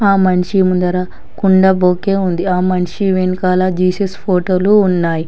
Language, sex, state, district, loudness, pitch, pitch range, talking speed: Telugu, female, Telangana, Hyderabad, -14 LUFS, 185 Hz, 180-190 Hz, 135 wpm